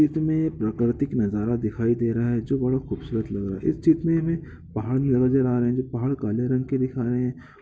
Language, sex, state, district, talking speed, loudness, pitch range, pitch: Hindi, male, Bihar, Gopalganj, 235 wpm, -24 LUFS, 115-135 Hz, 125 Hz